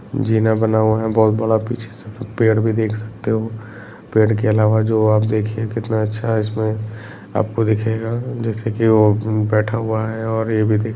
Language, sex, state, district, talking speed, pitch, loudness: Hindi, male, Bihar, Lakhisarai, 195 wpm, 110 Hz, -18 LUFS